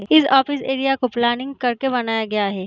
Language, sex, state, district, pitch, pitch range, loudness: Hindi, female, Bihar, Sitamarhi, 255 Hz, 230-270 Hz, -19 LUFS